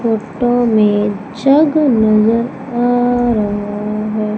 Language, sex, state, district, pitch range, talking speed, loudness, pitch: Hindi, female, Madhya Pradesh, Umaria, 215-245 Hz, 95 wpm, -14 LUFS, 225 Hz